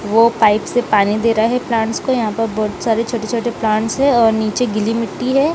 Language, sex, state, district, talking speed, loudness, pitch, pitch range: Hindi, female, Punjab, Kapurthala, 225 wpm, -16 LUFS, 225 Hz, 215-235 Hz